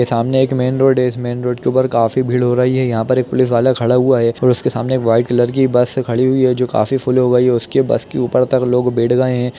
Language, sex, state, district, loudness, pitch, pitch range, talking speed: Hindi, male, Chhattisgarh, Rajnandgaon, -15 LUFS, 125 Hz, 120-130 Hz, 300 wpm